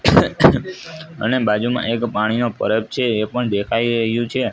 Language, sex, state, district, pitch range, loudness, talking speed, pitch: Gujarati, male, Gujarat, Gandhinagar, 110-125 Hz, -18 LUFS, 145 wpm, 120 Hz